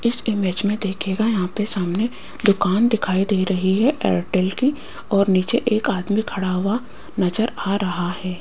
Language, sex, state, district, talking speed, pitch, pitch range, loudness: Hindi, female, Rajasthan, Jaipur, 170 wpm, 200 Hz, 185-225 Hz, -21 LUFS